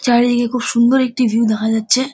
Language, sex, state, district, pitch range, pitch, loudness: Bengali, male, West Bengal, Dakshin Dinajpur, 225-250 Hz, 240 Hz, -15 LUFS